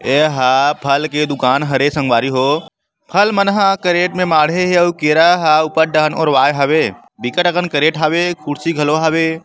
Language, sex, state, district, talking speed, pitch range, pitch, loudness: Chhattisgarhi, male, Chhattisgarh, Bastar, 185 wpm, 145-175 Hz, 155 Hz, -14 LUFS